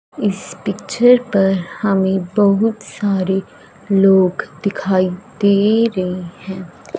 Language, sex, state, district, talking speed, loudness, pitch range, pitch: Hindi, female, Punjab, Fazilka, 95 wpm, -16 LUFS, 185-205 Hz, 195 Hz